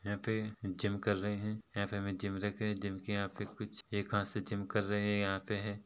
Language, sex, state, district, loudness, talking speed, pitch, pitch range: Hindi, male, Chhattisgarh, Rajnandgaon, -37 LUFS, 305 wpm, 105 Hz, 100-105 Hz